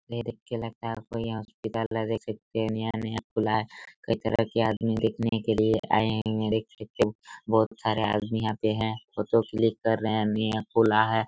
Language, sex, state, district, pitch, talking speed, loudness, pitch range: Hindi, male, Chhattisgarh, Raigarh, 110 Hz, 235 wpm, -28 LUFS, 110-115 Hz